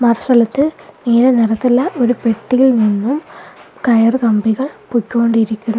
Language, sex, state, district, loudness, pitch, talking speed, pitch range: Malayalam, female, Kerala, Kollam, -14 LUFS, 235 Hz, 105 wpm, 225-255 Hz